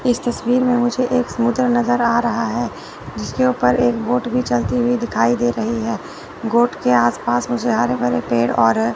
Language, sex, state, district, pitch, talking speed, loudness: Hindi, male, Chandigarh, Chandigarh, 225 Hz, 200 wpm, -18 LUFS